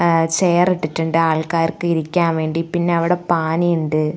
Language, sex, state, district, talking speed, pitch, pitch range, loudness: Malayalam, female, Kerala, Thiruvananthapuram, 160 wpm, 165 Hz, 160-175 Hz, -18 LUFS